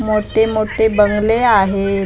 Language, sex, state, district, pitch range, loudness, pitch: Marathi, female, Maharashtra, Mumbai Suburban, 205-220 Hz, -14 LUFS, 215 Hz